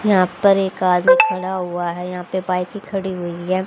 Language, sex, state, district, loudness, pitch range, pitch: Hindi, female, Haryana, Jhajjar, -19 LUFS, 180-190 Hz, 185 Hz